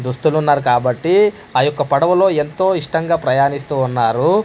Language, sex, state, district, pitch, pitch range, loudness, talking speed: Telugu, male, Andhra Pradesh, Manyam, 150 Hz, 135-170 Hz, -16 LUFS, 120 wpm